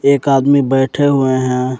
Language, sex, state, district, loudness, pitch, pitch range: Hindi, male, Jharkhand, Ranchi, -13 LUFS, 135 Hz, 130-140 Hz